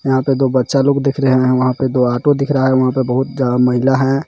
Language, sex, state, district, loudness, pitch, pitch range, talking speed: Hindi, male, Jharkhand, Garhwa, -14 LUFS, 130 Hz, 130-135 Hz, 295 wpm